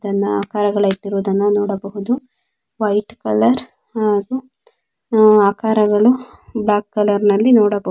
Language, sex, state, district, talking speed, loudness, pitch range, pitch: Kannada, female, Karnataka, Dakshina Kannada, 90 wpm, -16 LUFS, 200-225 Hz, 210 Hz